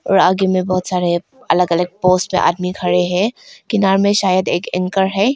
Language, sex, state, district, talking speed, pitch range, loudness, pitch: Hindi, female, Arunachal Pradesh, Longding, 200 wpm, 180-195 Hz, -16 LUFS, 185 Hz